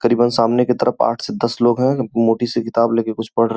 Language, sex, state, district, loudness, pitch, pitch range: Hindi, male, Uttar Pradesh, Gorakhpur, -17 LUFS, 115 Hz, 115-120 Hz